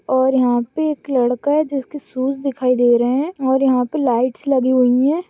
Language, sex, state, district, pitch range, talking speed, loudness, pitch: Hindi, female, Maharashtra, Pune, 250-285 Hz, 215 wpm, -17 LUFS, 260 Hz